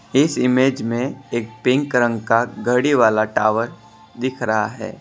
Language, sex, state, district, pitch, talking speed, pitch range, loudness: Hindi, male, Gujarat, Valsad, 120 Hz, 155 wpm, 110-125 Hz, -19 LUFS